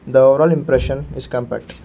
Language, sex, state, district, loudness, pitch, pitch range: English, male, Arunachal Pradesh, Lower Dibang Valley, -16 LUFS, 135 Hz, 130-150 Hz